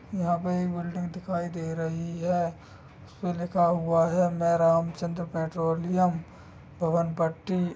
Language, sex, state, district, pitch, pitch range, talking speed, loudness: Hindi, male, Bihar, Sitamarhi, 170 Hz, 165-175 Hz, 125 wpm, -28 LUFS